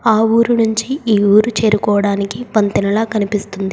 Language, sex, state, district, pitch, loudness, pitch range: Telugu, female, Telangana, Komaram Bheem, 215 Hz, -15 LUFS, 205-225 Hz